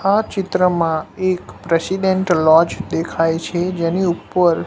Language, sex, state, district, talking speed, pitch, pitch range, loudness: Gujarati, male, Gujarat, Gandhinagar, 115 wpm, 175 Hz, 165-185 Hz, -18 LUFS